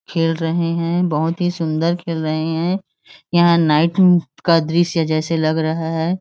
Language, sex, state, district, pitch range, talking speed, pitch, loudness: Hindi, female, Chhattisgarh, Raigarh, 160-170 Hz, 165 wpm, 165 Hz, -18 LUFS